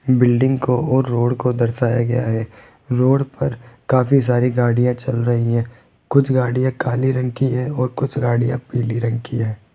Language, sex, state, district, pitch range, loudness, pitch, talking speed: Hindi, male, Rajasthan, Jaipur, 120-130 Hz, -18 LUFS, 125 Hz, 170 wpm